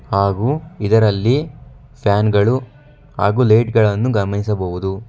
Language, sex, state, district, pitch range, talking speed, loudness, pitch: Kannada, male, Karnataka, Bangalore, 100-130 Hz, 95 wpm, -17 LUFS, 110 Hz